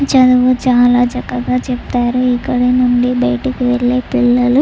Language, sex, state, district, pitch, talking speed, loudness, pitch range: Telugu, female, Andhra Pradesh, Chittoor, 250 Hz, 130 wpm, -13 LUFS, 245-250 Hz